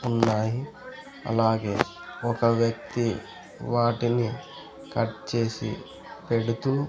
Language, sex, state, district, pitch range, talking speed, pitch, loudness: Telugu, male, Andhra Pradesh, Sri Satya Sai, 115-120 Hz, 80 wpm, 115 Hz, -27 LUFS